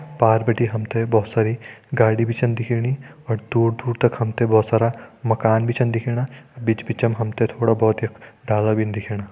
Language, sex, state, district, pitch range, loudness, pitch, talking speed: Hindi, male, Uttarakhand, Tehri Garhwal, 110-120 Hz, -21 LUFS, 115 Hz, 205 wpm